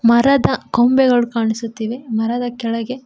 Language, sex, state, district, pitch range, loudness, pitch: Kannada, female, Karnataka, Koppal, 230-250 Hz, -17 LUFS, 235 Hz